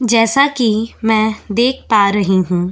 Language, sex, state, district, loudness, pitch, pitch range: Hindi, female, Goa, North and South Goa, -14 LUFS, 220 Hz, 205-235 Hz